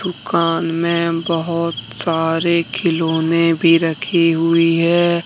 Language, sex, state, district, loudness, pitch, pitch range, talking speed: Hindi, male, Jharkhand, Deoghar, -16 LUFS, 165 Hz, 165-170 Hz, 105 wpm